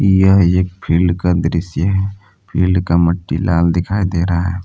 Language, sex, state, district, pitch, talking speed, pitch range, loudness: Hindi, male, Jharkhand, Palamu, 90 Hz, 180 wpm, 85-95 Hz, -15 LUFS